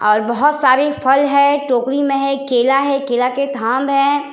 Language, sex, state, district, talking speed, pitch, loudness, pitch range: Hindi, female, Bihar, Vaishali, 195 wpm, 275 Hz, -15 LUFS, 255-280 Hz